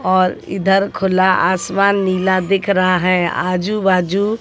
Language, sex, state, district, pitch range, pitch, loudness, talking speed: Hindi, female, Haryana, Jhajjar, 185-195 Hz, 190 Hz, -16 LUFS, 135 wpm